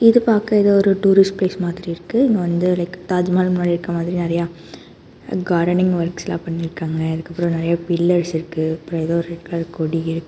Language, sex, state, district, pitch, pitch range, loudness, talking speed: Tamil, female, Karnataka, Bangalore, 175 Hz, 165-185 Hz, -19 LUFS, 170 wpm